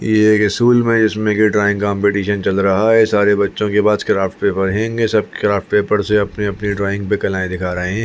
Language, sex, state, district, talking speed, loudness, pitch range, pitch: Hindi, male, Chhattisgarh, Bastar, 230 wpm, -15 LUFS, 100-110 Hz, 105 Hz